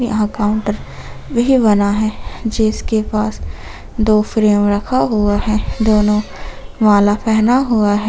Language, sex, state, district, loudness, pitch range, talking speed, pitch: Hindi, female, Jharkhand, Ranchi, -15 LUFS, 205-220 Hz, 125 wpm, 215 Hz